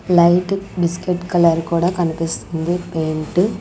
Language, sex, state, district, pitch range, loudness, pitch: Telugu, female, Andhra Pradesh, Sri Satya Sai, 165-180 Hz, -18 LUFS, 175 Hz